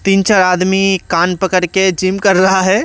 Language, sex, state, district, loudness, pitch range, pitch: Hindi, male, Haryana, Rohtak, -12 LUFS, 185-195 Hz, 190 Hz